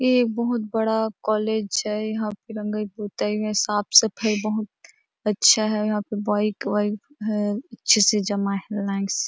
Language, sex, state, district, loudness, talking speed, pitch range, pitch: Hindi, female, Chhattisgarh, Bastar, -23 LUFS, 180 wpm, 210-220 Hz, 215 Hz